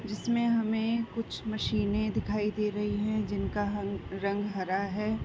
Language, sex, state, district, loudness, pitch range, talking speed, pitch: Hindi, female, Uttar Pradesh, Varanasi, -31 LUFS, 205-220 Hz, 150 wpm, 210 Hz